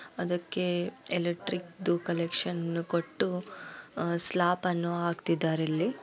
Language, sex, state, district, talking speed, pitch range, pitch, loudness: Kannada, female, Karnataka, Bellary, 100 wpm, 170-180 Hz, 175 Hz, -31 LUFS